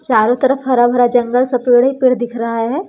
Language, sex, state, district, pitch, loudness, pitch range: Hindi, female, Madhya Pradesh, Umaria, 245 Hz, -14 LUFS, 240-260 Hz